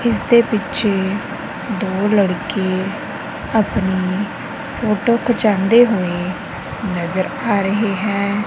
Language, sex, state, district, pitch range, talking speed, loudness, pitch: Punjabi, female, Punjab, Kapurthala, 190-220 Hz, 85 wpm, -18 LUFS, 205 Hz